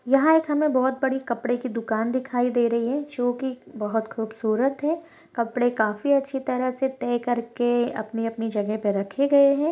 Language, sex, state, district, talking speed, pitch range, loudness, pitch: Hindi, female, Maharashtra, Dhule, 190 wpm, 230-270 Hz, -24 LUFS, 245 Hz